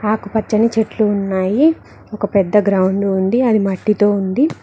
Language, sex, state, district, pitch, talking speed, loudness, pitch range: Telugu, female, Telangana, Mahabubabad, 210 Hz, 130 wpm, -16 LUFS, 195-220 Hz